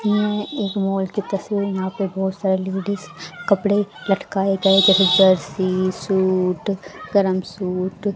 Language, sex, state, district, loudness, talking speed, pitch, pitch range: Hindi, female, Haryana, Rohtak, -20 LUFS, 130 wpm, 195 Hz, 185-200 Hz